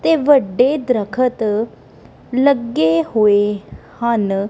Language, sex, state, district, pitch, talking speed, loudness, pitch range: Punjabi, female, Punjab, Kapurthala, 235 Hz, 80 wpm, -16 LUFS, 205-255 Hz